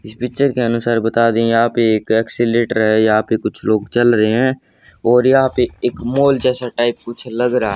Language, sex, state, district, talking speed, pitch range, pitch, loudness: Hindi, male, Haryana, Rohtak, 225 wpm, 110-125 Hz, 120 Hz, -16 LUFS